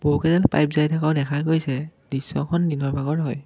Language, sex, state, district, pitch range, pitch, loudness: Assamese, male, Assam, Kamrup Metropolitan, 140-160 Hz, 150 Hz, -22 LUFS